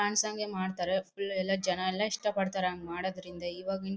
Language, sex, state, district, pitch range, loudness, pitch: Kannada, female, Karnataka, Bellary, 185-200 Hz, -33 LUFS, 190 Hz